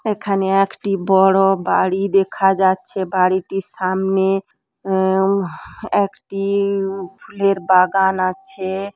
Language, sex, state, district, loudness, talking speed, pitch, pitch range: Bengali, female, West Bengal, Dakshin Dinajpur, -18 LUFS, 100 wpm, 195 Hz, 190-195 Hz